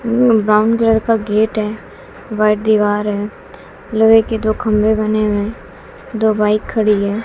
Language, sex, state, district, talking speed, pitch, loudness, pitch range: Hindi, female, Bihar, West Champaran, 155 wpm, 215 Hz, -15 LUFS, 210-220 Hz